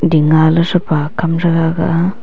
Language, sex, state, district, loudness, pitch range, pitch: Wancho, female, Arunachal Pradesh, Longding, -13 LUFS, 160-170 Hz, 165 Hz